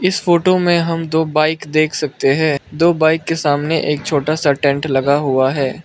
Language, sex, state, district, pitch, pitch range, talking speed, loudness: Hindi, male, Arunachal Pradesh, Lower Dibang Valley, 155 Hz, 145-165 Hz, 185 wpm, -16 LUFS